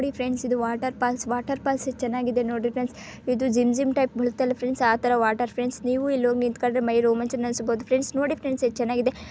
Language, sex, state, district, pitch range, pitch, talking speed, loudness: Kannada, female, Karnataka, Bijapur, 240-260 Hz, 245 Hz, 215 wpm, -25 LUFS